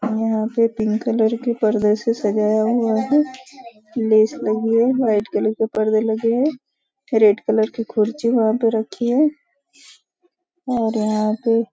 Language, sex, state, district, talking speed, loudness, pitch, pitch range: Hindi, female, Maharashtra, Nagpur, 155 wpm, -19 LUFS, 225 Hz, 215-240 Hz